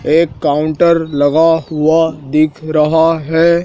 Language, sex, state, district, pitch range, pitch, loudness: Hindi, male, Madhya Pradesh, Dhar, 150-165 Hz, 160 Hz, -13 LUFS